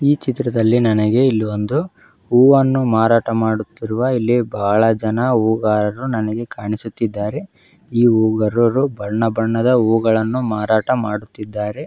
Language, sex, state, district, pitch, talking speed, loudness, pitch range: Kannada, male, Karnataka, Belgaum, 115 Hz, 100 wpm, -17 LUFS, 110-125 Hz